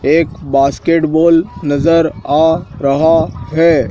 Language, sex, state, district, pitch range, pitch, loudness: Hindi, male, Madhya Pradesh, Dhar, 140-165 Hz, 160 Hz, -13 LUFS